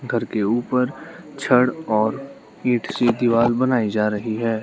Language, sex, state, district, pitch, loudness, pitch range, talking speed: Hindi, male, Arunachal Pradesh, Lower Dibang Valley, 120 Hz, -20 LUFS, 110-125 Hz, 155 wpm